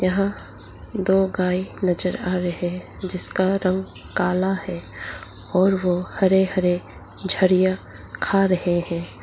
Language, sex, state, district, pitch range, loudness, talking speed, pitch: Hindi, female, Arunachal Pradesh, Lower Dibang Valley, 180-190 Hz, -21 LUFS, 125 wpm, 185 Hz